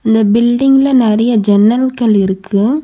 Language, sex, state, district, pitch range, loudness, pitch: Tamil, female, Tamil Nadu, Nilgiris, 210-250 Hz, -11 LUFS, 225 Hz